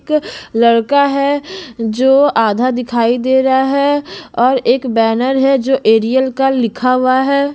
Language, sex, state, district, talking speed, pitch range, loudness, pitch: Hindi, female, Bihar, Patna, 150 wpm, 240-275 Hz, -13 LUFS, 260 Hz